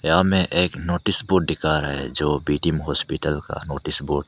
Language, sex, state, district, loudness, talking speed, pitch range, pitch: Hindi, male, Arunachal Pradesh, Papum Pare, -21 LUFS, 240 wpm, 75-90 Hz, 75 Hz